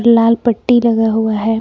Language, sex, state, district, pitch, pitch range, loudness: Hindi, female, Jharkhand, Palamu, 230 Hz, 220-235 Hz, -13 LUFS